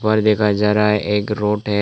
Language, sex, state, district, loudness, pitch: Hindi, male, Tripura, West Tripura, -17 LUFS, 105 Hz